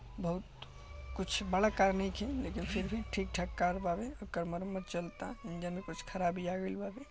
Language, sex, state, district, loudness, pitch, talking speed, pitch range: Bhojpuri, male, Bihar, Gopalganj, -37 LUFS, 190 Hz, 175 wpm, 175-200 Hz